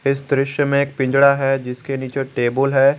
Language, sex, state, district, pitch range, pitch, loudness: Hindi, male, Jharkhand, Garhwa, 135-140 Hz, 135 Hz, -18 LUFS